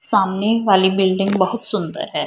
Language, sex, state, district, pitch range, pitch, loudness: Hindi, female, Punjab, Fazilka, 190-210 Hz, 195 Hz, -17 LUFS